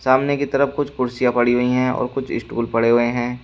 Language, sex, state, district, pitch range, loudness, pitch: Hindi, male, Uttar Pradesh, Shamli, 120-135 Hz, -19 LUFS, 125 Hz